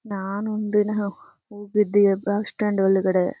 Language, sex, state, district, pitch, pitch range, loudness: Kannada, female, Karnataka, Chamarajanagar, 205 Hz, 195-210 Hz, -22 LUFS